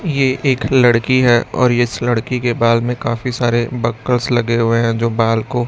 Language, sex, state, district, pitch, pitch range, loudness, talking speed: Hindi, male, Chhattisgarh, Raipur, 120 Hz, 115-125 Hz, -15 LUFS, 200 wpm